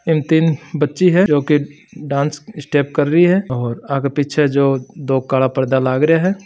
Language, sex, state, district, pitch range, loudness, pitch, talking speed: Marwari, male, Rajasthan, Nagaur, 140-160 Hz, -16 LUFS, 145 Hz, 185 wpm